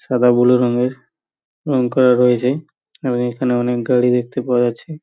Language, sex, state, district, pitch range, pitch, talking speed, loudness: Bengali, male, West Bengal, Purulia, 125-130 Hz, 125 Hz, 155 wpm, -17 LUFS